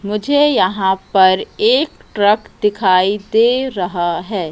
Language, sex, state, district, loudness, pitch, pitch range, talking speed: Hindi, female, Madhya Pradesh, Katni, -15 LUFS, 200 Hz, 185-220 Hz, 120 wpm